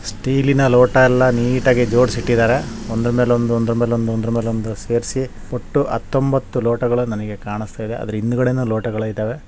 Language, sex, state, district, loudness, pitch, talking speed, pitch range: Kannada, male, Karnataka, Shimoga, -18 LUFS, 120 Hz, 170 wpm, 110-125 Hz